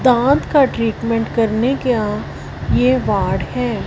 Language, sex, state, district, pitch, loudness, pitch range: Hindi, female, Punjab, Fazilka, 245 Hz, -17 LUFS, 225-260 Hz